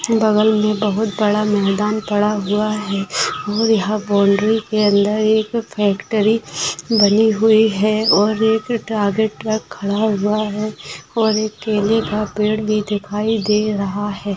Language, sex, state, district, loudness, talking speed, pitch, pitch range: Hindi, female, Bihar, Gaya, -17 LUFS, 145 wpm, 215 Hz, 205-220 Hz